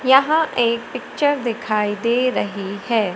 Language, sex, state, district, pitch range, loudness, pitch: Hindi, female, Madhya Pradesh, Umaria, 210-260 Hz, -19 LUFS, 235 Hz